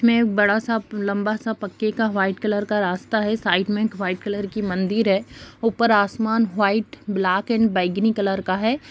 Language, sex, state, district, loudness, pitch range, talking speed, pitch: Hindi, female, Bihar, Jamui, -21 LUFS, 195-225 Hz, 200 wpm, 210 Hz